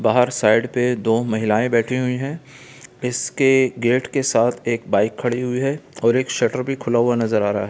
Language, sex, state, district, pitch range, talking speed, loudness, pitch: Hindi, male, Bihar, Gaya, 115-130 Hz, 210 wpm, -19 LUFS, 125 Hz